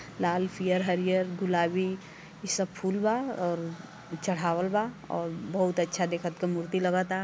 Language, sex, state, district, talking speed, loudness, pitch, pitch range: Bhojpuri, female, Uttar Pradesh, Gorakhpur, 160 wpm, -29 LUFS, 185 Hz, 170-190 Hz